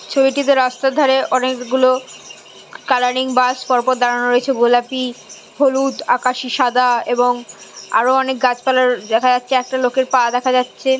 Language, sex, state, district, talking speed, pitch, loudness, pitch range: Bengali, female, West Bengal, Jhargram, 130 wpm, 255 Hz, -16 LUFS, 245-260 Hz